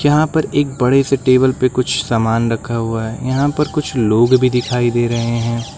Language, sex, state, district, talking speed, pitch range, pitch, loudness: Hindi, male, Uttar Pradesh, Lucknow, 220 wpm, 115-135 Hz, 125 Hz, -16 LUFS